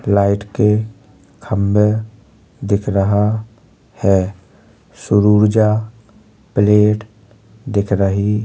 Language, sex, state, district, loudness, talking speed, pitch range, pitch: Hindi, female, Uttar Pradesh, Jalaun, -16 LUFS, 80 wpm, 100-110 Hz, 105 Hz